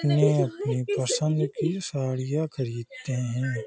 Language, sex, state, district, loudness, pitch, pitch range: Hindi, male, Uttar Pradesh, Hamirpur, -27 LUFS, 135 Hz, 130-150 Hz